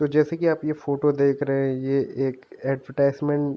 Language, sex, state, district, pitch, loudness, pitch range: Hindi, male, Uttar Pradesh, Jalaun, 140 Hz, -24 LUFS, 135-150 Hz